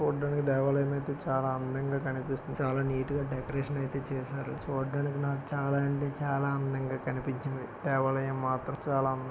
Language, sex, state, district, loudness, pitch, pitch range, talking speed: Telugu, male, Andhra Pradesh, Guntur, -32 LUFS, 135 Hz, 130-140 Hz, 140 wpm